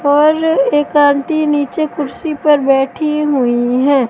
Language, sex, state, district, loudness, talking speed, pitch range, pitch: Hindi, female, Madhya Pradesh, Katni, -13 LUFS, 130 wpm, 275-305 Hz, 295 Hz